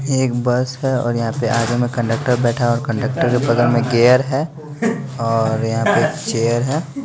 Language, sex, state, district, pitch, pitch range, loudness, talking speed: Hindi, male, Bihar, West Champaran, 120 Hz, 115-130 Hz, -17 LUFS, 195 wpm